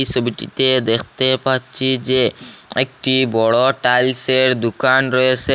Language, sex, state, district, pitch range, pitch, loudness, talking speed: Bengali, male, Assam, Hailakandi, 125-130 Hz, 130 Hz, -16 LUFS, 95 wpm